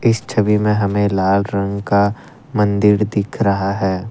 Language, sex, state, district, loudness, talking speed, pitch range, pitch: Hindi, male, Assam, Kamrup Metropolitan, -17 LUFS, 160 wpm, 100-105 Hz, 100 Hz